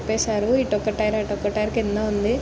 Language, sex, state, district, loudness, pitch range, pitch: Telugu, female, Andhra Pradesh, Guntur, -23 LUFS, 210-220 Hz, 215 Hz